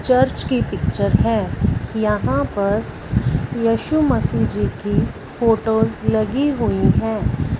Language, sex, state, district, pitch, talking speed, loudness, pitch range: Hindi, female, Punjab, Fazilka, 225 Hz, 110 wpm, -19 LUFS, 215-255 Hz